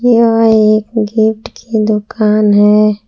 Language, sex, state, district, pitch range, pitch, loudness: Hindi, female, Jharkhand, Palamu, 210-225 Hz, 215 Hz, -11 LUFS